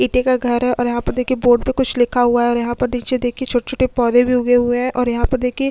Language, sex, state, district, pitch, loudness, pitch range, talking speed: Hindi, female, Chhattisgarh, Sukma, 245 Hz, -17 LUFS, 240-255 Hz, 335 wpm